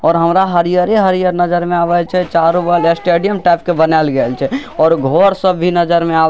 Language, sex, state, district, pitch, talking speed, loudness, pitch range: Maithili, male, Bihar, Darbhanga, 175 Hz, 230 wpm, -13 LUFS, 165-180 Hz